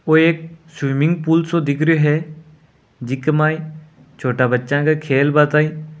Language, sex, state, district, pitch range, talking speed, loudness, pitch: Hindi, male, Rajasthan, Nagaur, 140-160 Hz, 170 wpm, -17 LUFS, 155 Hz